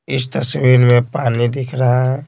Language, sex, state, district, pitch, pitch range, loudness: Hindi, male, Bihar, Patna, 130 Hz, 125-135 Hz, -15 LUFS